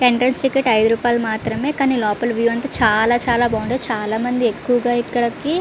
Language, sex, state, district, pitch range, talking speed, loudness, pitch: Telugu, female, Andhra Pradesh, Visakhapatnam, 225-250 Hz, 180 wpm, -18 LUFS, 240 Hz